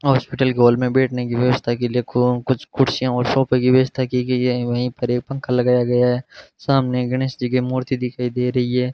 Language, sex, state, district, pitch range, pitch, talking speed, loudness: Hindi, male, Rajasthan, Bikaner, 125-130 Hz, 125 Hz, 220 wpm, -19 LUFS